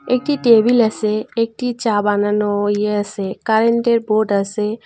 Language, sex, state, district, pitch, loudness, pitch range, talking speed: Bengali, female, West Bengal, Cooch Behar, 215 Hz, -17 LUFS, 205-235 Hz, 135 wpm